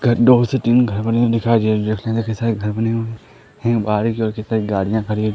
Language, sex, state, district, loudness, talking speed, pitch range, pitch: Hindi, male, Madhya Pradesh, Katni, -18 LUFS, 260 wpm, 110-115 Hz, 115 Hz